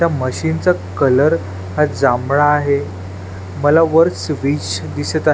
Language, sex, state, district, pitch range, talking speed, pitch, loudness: Marathi, male, Maharashtra, Washim, 95-150 Hz, 135 wpm, 130 Hz, -16 LUFS